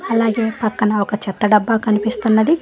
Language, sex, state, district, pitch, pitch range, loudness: Telugu, female, Telangana, Hyderabad, 220 Hz, 210-230 Hz, -17 LUFS